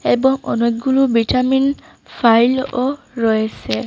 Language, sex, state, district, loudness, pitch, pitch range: Bengali, female, Assam, Hailakandi, -16 LUFS, 250 Hz, 230-265 Hz